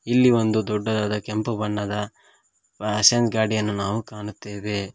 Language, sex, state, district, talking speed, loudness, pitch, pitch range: Kannada, male, Karnataka, Koppal, 95 wpm, -23 LUFS, 105 Hz, 105-110 Hz